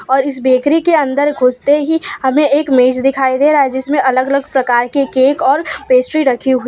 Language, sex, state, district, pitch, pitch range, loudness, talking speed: Hindi, female, Gujarat, Valsad, 270 Hz, 260-295 Hz, -13 LUFS, 215 wpm